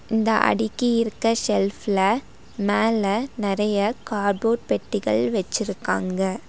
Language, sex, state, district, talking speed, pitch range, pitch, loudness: Tamil, female, Tamil Nadu, Nilgiris, 90 wpm, 200-225 Hz, 215 Hz, -23 LUFS